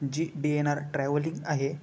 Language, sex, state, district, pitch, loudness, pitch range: Marathi, male, Maharashtra, Chandrapur, 145 Hz, -29 LUFS, 145-150 Hz